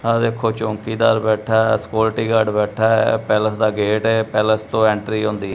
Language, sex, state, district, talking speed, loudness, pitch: Punjabi, male, Punjab, Kapurthala, 205 wpm, -18 LUFS, 110 Hz